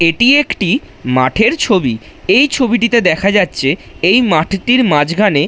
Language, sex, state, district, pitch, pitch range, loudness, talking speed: Bengali, male, West Bengal, Dakshin Dinajpur, 200 Hz, 145-240 Hz, -12 LUFS, 130 wpm